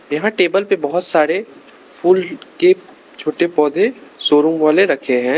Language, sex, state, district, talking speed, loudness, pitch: Hindi, male, Arunachal Pradesh, Lower Dibang Valley, 145 wpm, -16 LUFS, 180 Hz